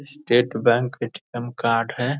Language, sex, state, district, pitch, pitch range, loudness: Hindi, male, Bihar, Purnia, 120 Hz, 115-125 Hz, -22 LUFS